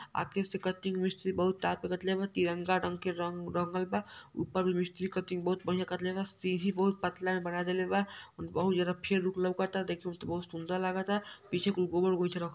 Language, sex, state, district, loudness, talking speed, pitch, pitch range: Bhojpuri, male, Uttar Pradesh, Ghazipur, -33 LUFS, 205 wpm, 185 Hz, 180-190 Hz